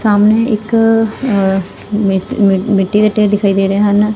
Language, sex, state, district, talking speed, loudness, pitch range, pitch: Punjabi, female, Punjab, Fazilka, 145 wpm, -13 LUFS, 195-215 Hz, 210 Hz